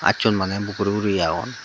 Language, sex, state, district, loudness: Chakma, female, Tripura, Dhalai, -22 LUFS